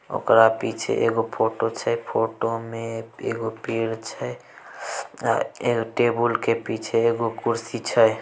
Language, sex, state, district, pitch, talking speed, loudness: Maithili, male, Bihar, Samastipur, 115 Hz, 125 wpm, -24 LUFS